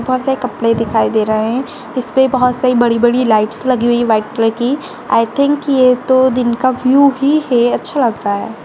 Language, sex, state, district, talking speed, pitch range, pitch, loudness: Hindi, female, Karnataka, Dakshina Kannada, 210 wpm, 230-260 Hz, 250 Hz, -14 LUFS